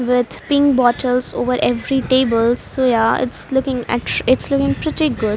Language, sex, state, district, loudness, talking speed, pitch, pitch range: English, female, Haryana, Rohtak, -17 LUFS, 165 wpm, 250 Hz, 245-270 Hz